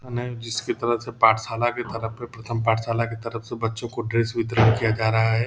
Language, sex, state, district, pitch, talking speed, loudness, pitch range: Hindi, male, Bihar, Purnia, 115 Hz, 220 wpm, -24 LUFS, 115-120 Hz